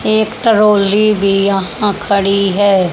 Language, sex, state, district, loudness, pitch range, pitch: Hindi, male, Haryana, Rohtak, -12 LUFS, 195-215 Hz, 200 Hz